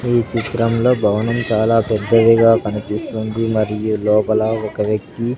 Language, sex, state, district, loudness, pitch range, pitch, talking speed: Telugu, male, Andhra Pradesh, Sri Satya Sai, -17 LUFS, 105-115 Hz, 110 Hz, 125 wpm